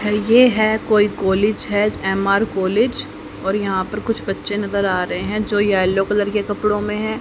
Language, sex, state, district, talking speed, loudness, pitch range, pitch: Hindi, female, Haryana, Jhajjar, 190 wpm, -18 LUFS, 195-215 Hz, 205 Hz